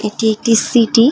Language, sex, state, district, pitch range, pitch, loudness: Bengali, female, West Bengal, Kolkata, 220-235 Hz, 225 Hz, -13 LUFS